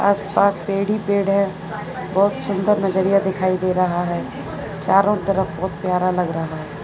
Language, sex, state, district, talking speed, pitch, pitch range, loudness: Hindi, female, Gujarat, Valsad, 175 wpm, 190 Hz, 180-200 Hz, -20 LUFS